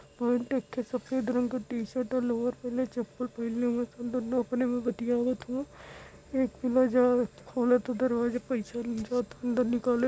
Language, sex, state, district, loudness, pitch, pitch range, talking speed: Hindi, female, Uttar Pradesh, Varanasi, -30 LUFS, 245 Hz, 240-255 Hz, 155 wpm